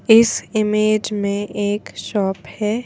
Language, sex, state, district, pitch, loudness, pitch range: Hindi, female, Madhya Pradesh, Bhopal, 210 Hz, -19 LUFS, 205-215 Hz